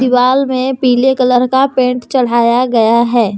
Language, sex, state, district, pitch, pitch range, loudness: Hindi, female, Jharkhand, Deoghar, 250 Hz, 240-260 Hz, -12 LUFS